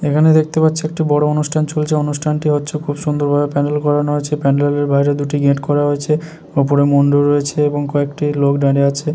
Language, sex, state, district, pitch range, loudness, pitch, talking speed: Bengali, male, West Bengal, Jhargram, 145-150 Hz, -16 LUFS, 145 Hz, 195 wpm